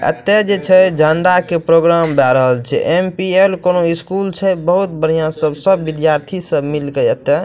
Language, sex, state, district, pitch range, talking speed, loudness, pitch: Maithili, male, Bihar, Madhepura, 155-190 Hz, 185 wpm, -13 LUFS, 175 Hz